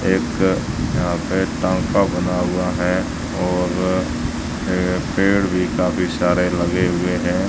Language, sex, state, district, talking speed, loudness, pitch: Hindi, male, Rajasthan, Jaisalmer, 130 wpm, -19 LUFS, 90 Hz